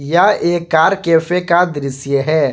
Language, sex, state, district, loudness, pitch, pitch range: Hindi, male, Jharkhand, Garhwa, -14 LUFS, 165 Hz, 140-175 Hz